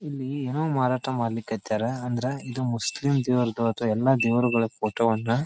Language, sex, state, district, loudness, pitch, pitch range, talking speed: Kannada, male, Karnataka, Dharwad, -26 LUFS, 125 Hz, 115-130 Hz, 155 wpm